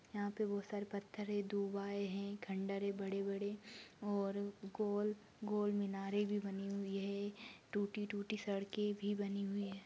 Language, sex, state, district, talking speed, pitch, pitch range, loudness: Hindi, female, Maharashtra, Solapur, 150 wpm, 200 Hz, 200-205 Hz, -42 LUFS